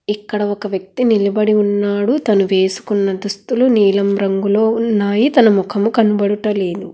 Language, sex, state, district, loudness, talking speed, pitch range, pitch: Telugu, female, Telangana, Hyderabad, -15 LUFS, 120 wpm, 200-215 Hz, 205 Hz